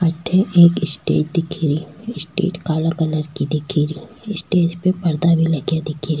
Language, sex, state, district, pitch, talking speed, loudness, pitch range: Rajasthani, female, Rajasthan, Churu, 165 Hz, 195 wpm, -18 LUFS, 155-180 Hz